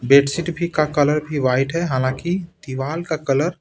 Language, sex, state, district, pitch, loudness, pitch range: Hindi, male, Bihar, Patna, 150 Hz, -20 LUFS, 135-170 Hz